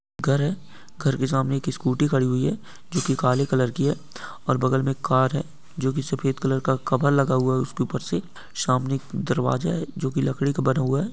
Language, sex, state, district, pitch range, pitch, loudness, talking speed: Hindi, male, Bihar, Supaul, 130-145 Hz, 135 Hz, -24 LUFS, 220 wpm